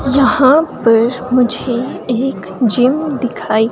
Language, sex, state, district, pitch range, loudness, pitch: Hindi, female, Himachal Pradesh, Shimla, 235-265 Hz, -14 LUFS, 250 Hz